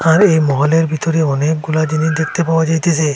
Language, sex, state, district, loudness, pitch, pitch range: Bengali, male, Assam, Hailakandi, -14 LUFS, 160 Hz, 155-165 Hz